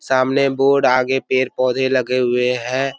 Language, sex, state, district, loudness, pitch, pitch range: Hindi, male, Bihar, Kishanganj, -17 LUFS, 130 Hz, 125-135 Hz